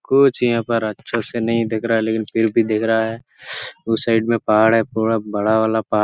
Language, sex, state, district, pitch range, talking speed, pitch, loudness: Hindi, male, Jharkhand, Sahebganj, 110-115 Hz, 240 wpm, 115 Hz, -18 LUFS